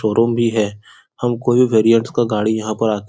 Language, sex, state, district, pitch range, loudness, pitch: Hindi, male, Bihar, Supaul, 110-120 Hz, -17 LUFS, 115 Hz